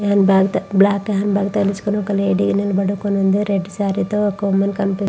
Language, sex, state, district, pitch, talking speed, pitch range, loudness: Telugu, female, Andhra Pradesh, Visakhapatnam, 200 Hz, 175 wpm, 195-205 Hz, -18 LUFS